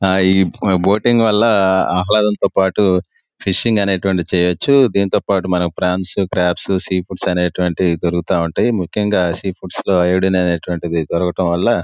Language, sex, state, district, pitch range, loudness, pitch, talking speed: Telugu, male, Andhra Pradesh, Guntur, 90-100 Hz, -16 LUFS, 95 Hz, 135 wpm